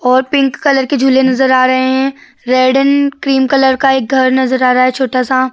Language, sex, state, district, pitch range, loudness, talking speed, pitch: Hindi, female, Uttar Pradesh, Jyotiba Phule Nagar, 255-270 Hz, -11 LUFS, 240 wpm, 265 Hz